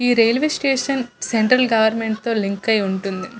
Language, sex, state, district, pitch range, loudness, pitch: Telugu, female, Andhra Pradesh, Visakhapatnam, 220-255 Hz, -19 LUFS, 230 Hz